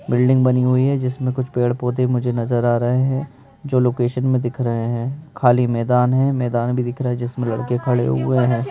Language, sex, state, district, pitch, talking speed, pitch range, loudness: Hindi, male, Madhya Pradesh, Bhopal, 125 Hz, 215 wpm, 120-130 Hz, -19 LUFS